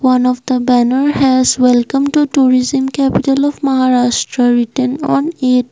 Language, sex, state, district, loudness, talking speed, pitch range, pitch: English, female, Assam, Kamrup Metropolitan, -13 LUFS, 145 wpm, 250-275 Hz, 255 Hz